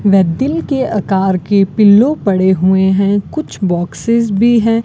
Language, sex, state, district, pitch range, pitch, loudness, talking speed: Hindi, female, Rajasthan, Bikaner, 190-230 Hz, 200 Hz, -13 LUFS, 160 wpm